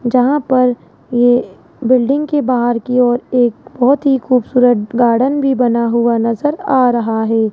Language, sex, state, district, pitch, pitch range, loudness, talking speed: Hindi, female, Rajasthan, Jaipur, 245 Hz, 235-260 Hz, -14 LUFS, 160 wpm